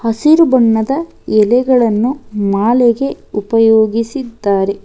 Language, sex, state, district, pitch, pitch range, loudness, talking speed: Kannada, female, Karnataka, Bangalore, 230 Hz, 215-260 Hz, -13 LUFS, 60 wpm